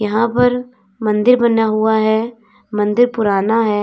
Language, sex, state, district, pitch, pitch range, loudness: Hindi, female, Uttar Pradesh, Lalitpur, 220 Hz, 210-235 Hz, -15 LUFS